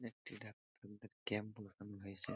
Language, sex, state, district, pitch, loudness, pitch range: Bengali, male, West Bengal, Purulia, 105 Hz, -49 LUFS, 100-110 Hz